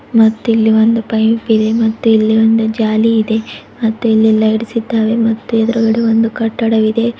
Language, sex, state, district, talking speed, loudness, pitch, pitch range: Kannada, female, Karnataka, Bidar, 140 wpm, -13 LUFS, 225 Hz, 220-230 Hz